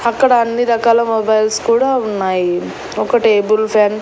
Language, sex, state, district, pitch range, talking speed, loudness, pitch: Telugu, female, Andhra Pradesh, Annamaya, 215-235 Hz, 150 wpm, -14 LUFS, 220 Hz